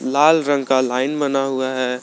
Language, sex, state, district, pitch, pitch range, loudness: Hindi, male, Jharkhand, Garhwa, 135 Hz, 130-145 Hz, -18 LUFS